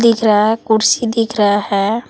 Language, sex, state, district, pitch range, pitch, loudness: Hindi, female, Jharkhand, Palamu, 210-230 Hz, 220 Hz, -14 LUFS